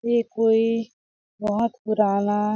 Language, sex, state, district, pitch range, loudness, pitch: Hindi, female, Chhattisgarh, Balrampur, 210-230 Hz, -23 LUFS, 225 Hz